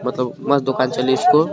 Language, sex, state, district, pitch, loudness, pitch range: Hindi, male, Jharkhand, Garhwa, 130 Hz, -18 LUFS, 125-145 Hz